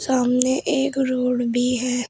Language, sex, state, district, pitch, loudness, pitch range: Hindi, female, Uttar Pradesh, Shamli, 250 Hz, -21 LUFS, 250-265 Hz